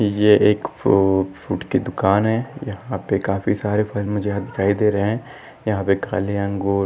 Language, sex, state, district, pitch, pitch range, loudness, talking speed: Hindi, male, Maharashtra, Nagpur, 100 Hz, 100-105 Hz, -20 LUFS, 190 wpm